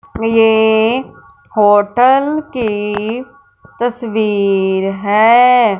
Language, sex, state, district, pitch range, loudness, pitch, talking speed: Hindi, female, Punjab, Fazilka, 205-250 Hz, -13 LUFS, 220 Hz, 50 wpm